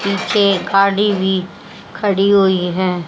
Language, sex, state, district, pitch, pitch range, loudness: Hindi, female, Haryana, Rohtak, 195 Hz, 190-200 Hz, -15 LUFS